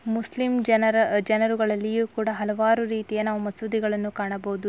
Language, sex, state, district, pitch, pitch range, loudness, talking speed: Kannada, female, Karnataka, Raichur, 220 Hz, 210-225 Hz, -24 LUFS, 115 wpm